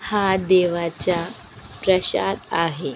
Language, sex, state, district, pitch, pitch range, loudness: Marathi, female, Maharashtra, Aurangabad, 170 Hz, 140-185 Hz, -20 LUFS